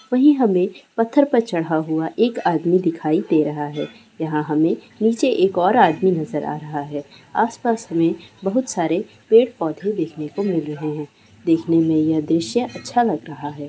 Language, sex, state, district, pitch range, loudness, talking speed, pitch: Hindi, female, West Bengal, Dakshin Dinajpur, 155-225 Hz, -20 LUFS, 180 wpm, 165 Hz